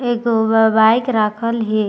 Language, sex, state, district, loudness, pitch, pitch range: Sadri, female, Chhattisgarh, Jashpur, -15 LUFS, 225 Hz, 220-230 Hz